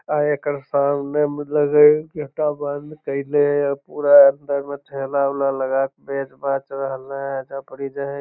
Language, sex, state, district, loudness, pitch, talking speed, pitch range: Magahi, male, Bihar, Lakhisarai, -20 LUFS, 140 Hz, 185 wpm, 140-145 Hz